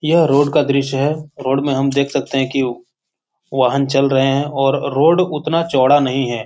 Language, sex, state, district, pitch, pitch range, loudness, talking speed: Hindi, male, Bihar, Supaul, 140 Hz, 135-145 Hz, -16 LUFS, 205 wpm